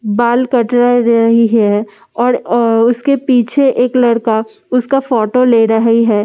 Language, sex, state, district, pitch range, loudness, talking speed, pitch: Hindi, female, Delhi, New Delhi, 225-245 Hz, -12 LUFS, 165 wpm, 235 Hz